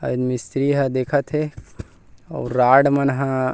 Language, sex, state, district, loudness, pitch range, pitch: Chhattisgarhi, male, Chhattisgarh, Rajnandgaon, -19 LUFS, 125-140 Hz, 135 Hz